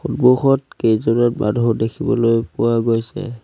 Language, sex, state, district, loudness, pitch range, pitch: Assamese, male, Assam, Sonitpur, -17 LUFS, 115-130 Hz, 115 Hz